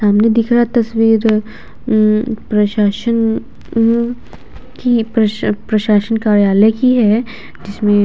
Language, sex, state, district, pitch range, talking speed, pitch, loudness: Hindi, female, Bihar, Vaishali, 210-230 Hz, 120 wpm, 220 Hz, -14 LUFS